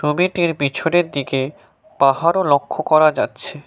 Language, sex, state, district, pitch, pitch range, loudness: Bengali, male, West Bengal, Cooch Behar, 155 Hz, 140-170 Hz, -17 LUFS